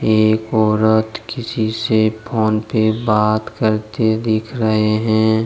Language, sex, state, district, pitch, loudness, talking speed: Hindi, male, Jharkhand, Deoghar, 110 Hz, -17 LUFS, 120 wpm